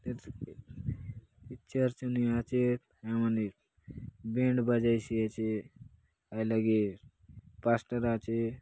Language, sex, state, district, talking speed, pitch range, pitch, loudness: Halbi, male, Chhattisgarh, Bastar, 90 wpm, 110-120 Hz, 115 Hz, -32 LUFS